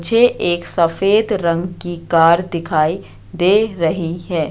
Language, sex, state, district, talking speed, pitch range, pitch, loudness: Hindi, female, Madhya Pradesh, Katni, 135 wpm, 165-195 Hz, 175 Hz, -16 LUFS